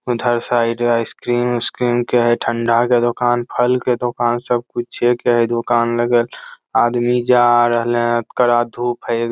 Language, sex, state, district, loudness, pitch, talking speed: Magahi, male, Bihar, Lakhisarai, -17 LUFS, 120 Hz, 180 wpm